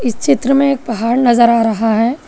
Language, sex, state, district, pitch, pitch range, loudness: Hindi, female, Telangana, Hyderabad, 235 Hz, 230-260 Hz, -13 LUFS